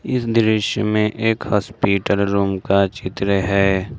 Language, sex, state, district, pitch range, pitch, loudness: Hindi, male, Jharkhand, Ranchi, 100-110 Hz, 100 Hz, -18 LUFS